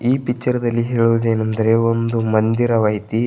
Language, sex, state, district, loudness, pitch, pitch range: Kannada, male, Karnataka, Bidar, -18 LUFS, 115 Hz, 110-120 Hz